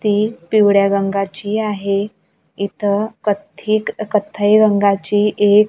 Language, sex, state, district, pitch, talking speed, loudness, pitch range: Marathi, female, Maharashtra, Gondia, 205 Hz, 95 wpm, -17 LUFS, 200-215 Hz